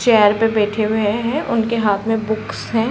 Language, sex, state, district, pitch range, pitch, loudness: Hindi, female, Uttar Pradesh, Varanasi, 215-230 Hz, 220 Hz, -18 LUFS